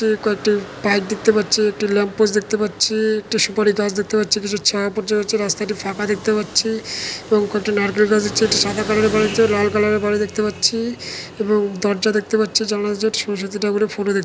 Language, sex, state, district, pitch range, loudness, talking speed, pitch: Bengali, male, West Bengal, Jalpaiguri, 205-215 Hz, -18 LUFS, 190 wpm, 210 Hz